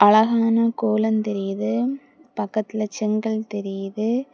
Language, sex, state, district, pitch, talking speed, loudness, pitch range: Tamil, female, Tamil Nadu, Kanyakumari, 220 Hz, 85 wpm, -22 LUFS, 210-230 Hz